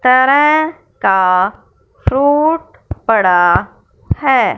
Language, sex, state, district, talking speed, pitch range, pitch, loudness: Hindi, female, Punjab, Fazilka, 65 wpm, 190-300 Hz, 255 Hz, -13 LUFS